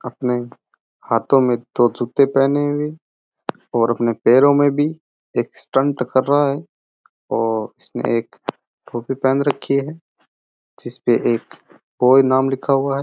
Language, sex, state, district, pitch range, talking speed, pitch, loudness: Rajasthani, male, Rajasthan, Churu, 120-140 Hz, 145 wpm, 135 Hz, -18 LUFS